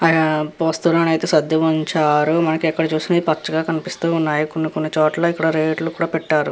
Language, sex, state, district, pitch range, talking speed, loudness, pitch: Telugu, female, Andhra Pradesh, Krishna, 155-165 Hz, 120 wpm, -18 LUFS, 160 Hz